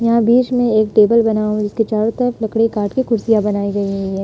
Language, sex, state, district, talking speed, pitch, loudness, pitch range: Hindi, female, Uttar Pradesh, Budaun, 240 wpm, 220 Hz, -16 LUFS, 210-230 Hz